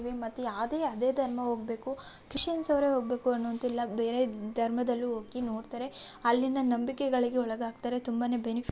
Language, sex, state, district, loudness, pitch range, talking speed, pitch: Kannada, female, Karnataka, Raichur, -31 LUFS, 235-255 Hz, 130 wpm, 245 Hz